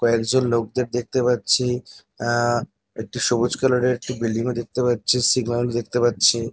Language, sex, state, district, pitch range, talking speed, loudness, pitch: Bengali, male, West Bengal, North 24 Parganas, 115-125 Hz, 155 wpm, -21 LUFS, 120 Hz